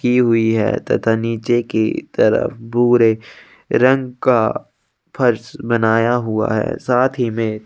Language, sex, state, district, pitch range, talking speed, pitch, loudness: Hindi, male, Chhattisgarh, Sukma, 110-120 Hz, 140 wpm, 115 Hz, -17 LUFS